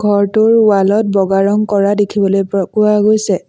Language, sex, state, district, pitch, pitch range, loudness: Assamese, female, Assam, Sonitpur, 205 Hz, 195-210 Hz, -12 LUFS